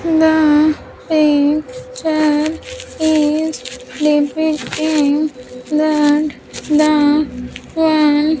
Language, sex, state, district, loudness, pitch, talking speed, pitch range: English, female, Andhra Pradesh, Sri Satya Sai, -15 LUFS, 305 Hz, 65 wpm, 295-315 Hz